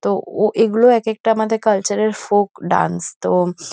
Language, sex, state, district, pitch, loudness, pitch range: Bengali, female, West Bengal, North 24 Parganas, 215 Hz, -17 LUFS, 190-220 Hz